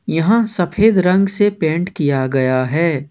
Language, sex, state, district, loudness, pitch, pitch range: Hindi, male, Jharkhand, Ranchi, -16 LUFS, 170 Hz, 145-200 Hz